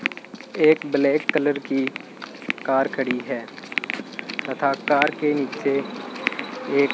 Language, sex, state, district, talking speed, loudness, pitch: Hindi, male, Rajasthan, Bikaner, 110 wpm, -23 LUFS, 145 Hz